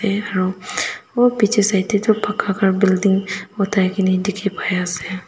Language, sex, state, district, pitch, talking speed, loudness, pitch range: Nagamese, female, Nagaland, Dimapur, 200 Hz, 100 wpm, -18 LUFS, 185-210 Hz